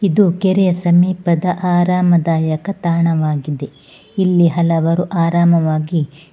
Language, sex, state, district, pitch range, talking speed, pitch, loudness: Kannada, female, Karnataka, Bangalore, 165-180 Hz, 75 wpm, 170 Hz, -15 LUFS